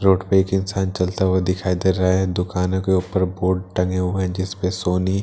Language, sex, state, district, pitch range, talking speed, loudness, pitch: Hindi, male, Bihar, Katihar, 90-95 Hz, 230 wpm, -21 LUFS, 95 Hz